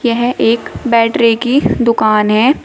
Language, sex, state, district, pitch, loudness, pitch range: Hindi, female, Uttar Pradesh, Shamli, 235 Hz, -12 LUFS, 225-245 Hz